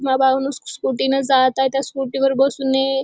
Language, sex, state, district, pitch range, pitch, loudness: Marathi, female, Maharashtra, Chandrapur, 265-270 Hz, 270 Hz, -18 LUFS